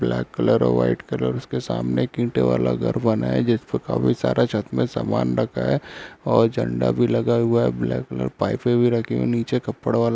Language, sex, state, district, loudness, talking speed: Hindi, male, Jharkhand, Sahebganj, -22 LUFS, 205 wpm